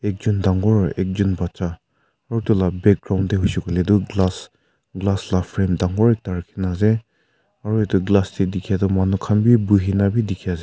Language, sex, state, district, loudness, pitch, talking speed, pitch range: Nagamese, male, Nagaland, Kohima, -20 LUFS, 95 Hz, 190 wpm, 95-105 Hz